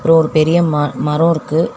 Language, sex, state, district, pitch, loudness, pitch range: Tamil, female, Tamil Nadu, Chennai, 160 Hz, -14 LUFS, 150-165 Hz